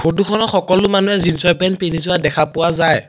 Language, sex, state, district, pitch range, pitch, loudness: Assamese, male, Assam, Sonitpur, 165-190 Hz, 175 Hz, -15 LUFS